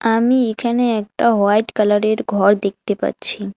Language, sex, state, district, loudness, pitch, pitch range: Bengali, female, West Bengal, Alipurduar, -17 LUFS, 215 Hz, 205-230 Hz